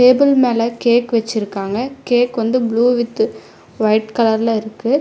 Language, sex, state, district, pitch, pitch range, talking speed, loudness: Tamil, female, Tamil Nadu, Namakkal, 235 Hz, 225-245 Hz, 130 wpm, -16 LUFS